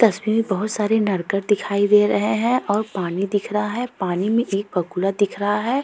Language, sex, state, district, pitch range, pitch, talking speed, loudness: Hindi, female, Uttar Pradesh, Jalaun, 195-220 Hz, 205 Hz, 215 wpm, -21 LUFS